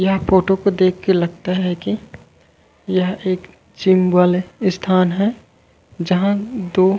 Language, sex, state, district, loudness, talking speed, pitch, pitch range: Chhattisgarhi, male, Chhattisgarh, Raigarh, -18 LUFS, 135 wpm, 185 Hz, 180-195 Hz